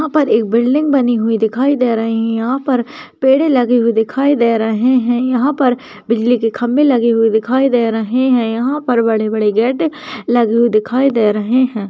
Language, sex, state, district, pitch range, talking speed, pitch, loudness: Hindi, female, West Bengal, Dakshin Dinajpur, 225-260 Hz, 210 wpm, 240 Hz, -14 LUFS